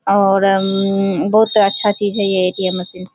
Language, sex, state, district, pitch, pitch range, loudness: Hindi, female, Bihar, Kishanganj, 195 Hz, 190-205 Hz, -15 LUFS